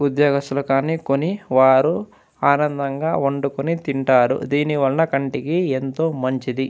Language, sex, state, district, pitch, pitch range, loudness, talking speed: Telugu, male, Andhra Pradesh, Anantapur, 140 Hz, 135-150 Hz, -19 LUFS, 100 wpm